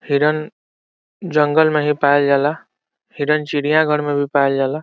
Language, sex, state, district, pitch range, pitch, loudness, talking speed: Bhojpuri, male, Bihar, Saran, 140-150 Hz, 145 Hz, -17 LUFS, 150 wpm